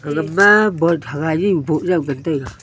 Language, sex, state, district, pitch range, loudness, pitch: Wancho, female, Arunachal Pradesh, Longding, 145-180 Hz, -16 LUFS, 160 Hz